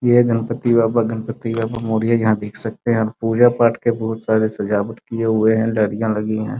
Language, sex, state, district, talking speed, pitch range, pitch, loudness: Hindi, male, Bihar, Muzaffarpur, 200 wpm, 110-115 Hz, 115 Hz, -18 LUFS